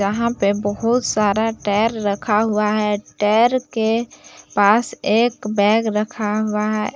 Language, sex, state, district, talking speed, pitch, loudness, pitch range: Hindi, female, Jharkhand, Palamu, 140 wpm, 215 Hz, -19 LUFS, 210-225 Hz